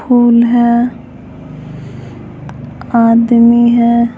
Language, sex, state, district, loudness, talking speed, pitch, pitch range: Hindi, female, Bihar, Patna, -10 LUFS, 55 wpm, 235 Hz, 235-240 Hz